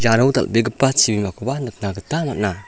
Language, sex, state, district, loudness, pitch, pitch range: Garo, male, Meghalaya, South Garo Hills, -19 LUFS, 115 Hz, 105-135 Hz